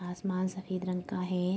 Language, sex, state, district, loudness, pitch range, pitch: Hindi, female, Uttar Pradesh, Budaun, -34 LUFS, 180-185 Hz, 185 Hz